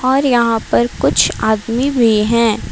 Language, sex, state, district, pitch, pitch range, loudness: Hindi, female, Karnataka, Bangalore, 230 Hz, 220-245 Hz, -14 LUFS